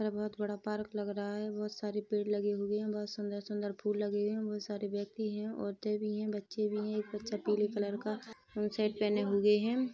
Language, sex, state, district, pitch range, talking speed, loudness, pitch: Hindi, female, Chhattisgarh, Rajnandgaon, 205-215 Hz, 230 wpm, -36 LUFS, 210 Hz